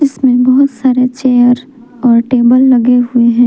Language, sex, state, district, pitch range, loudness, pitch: Hindi, female, Jharkhand, Palamu, 245-260 Hz, -10 LUFS, 250 Hz